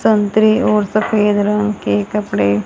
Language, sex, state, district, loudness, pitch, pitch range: Hindi, female, Haryana, Charkhi Dadri, -15 LUFS, 210 Hz, 200-215 Hz